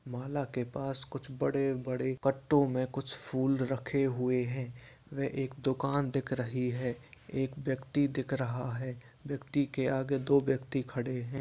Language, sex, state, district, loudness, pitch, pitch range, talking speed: Hindi, male, Bihar, Purnia, -33 LUFS, 130 Hz, 125-135 Hz, 160 wpm